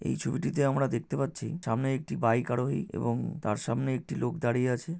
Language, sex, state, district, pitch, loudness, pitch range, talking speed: Bengali, male, West Bengal, North 24 Parganas, 130 Hz, -30 LUFS, 120-140 Hz, 190 wpm